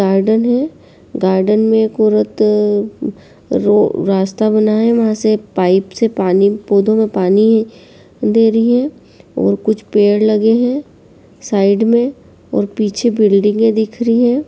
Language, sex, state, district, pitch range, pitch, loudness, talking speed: Hindi, female, Uttar Pradesh, Jyotiba Phule Nagar, 205-225 Hz, 215 Hz, -14 LUFS, 140 wpm